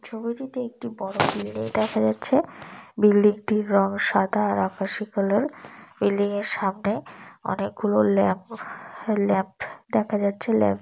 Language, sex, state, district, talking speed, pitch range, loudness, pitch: Bengali, female, West Bengal, Malda, 140 wpm, 185-215 Hz, -24 LUFS, 200 Hz